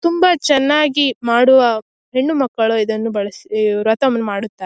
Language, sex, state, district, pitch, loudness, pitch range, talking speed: Kannada, female, Karnataka, Shimoga, 240 Hz, -16 LUFS, 215-275 Hz, 115 wpm